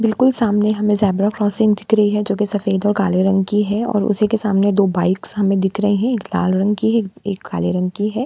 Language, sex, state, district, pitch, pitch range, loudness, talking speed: Hindi, female, Uttar Pradesh, Jalaun, 205 Hz, 195-215 Hz, -17 LUFS, 260 wpm